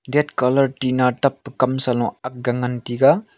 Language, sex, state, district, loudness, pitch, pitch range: Wancho, male, Arunachal Pradesh, Longding, -20 LUFS, 130 Hz, 125-140 Hz